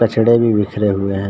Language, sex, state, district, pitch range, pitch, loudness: Hindi, male, Uttar Pradesh, Ghazipur, 100-115 Hz, 105 Hz, -15 LUFS